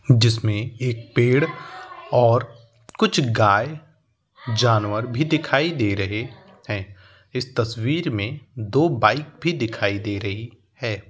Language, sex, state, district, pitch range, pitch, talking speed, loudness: Hindi, male, Uttar Pradesh, Varanasi, 105-130 Hz, 115 Hz, 120 wpm, -22 LUFS